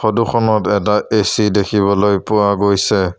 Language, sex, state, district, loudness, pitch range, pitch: Assamese, male, Assam, Sonitpur, -15 LUFS, 100-110 Hz, 105 Hz